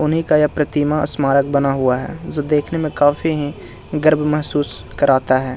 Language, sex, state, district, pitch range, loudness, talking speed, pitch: Hindi, male, Bihar, Jahanabad, 140-150 Hz, -17 LUFS, 185 wpm, 145 Hz